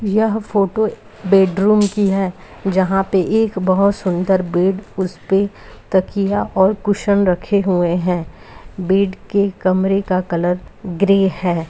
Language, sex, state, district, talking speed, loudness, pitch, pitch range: Bhojpuri, male, Uttar Pradesh, Gorakhpur, 135 wpm, -17 LUFS, 195 Hz, 185-200 Hz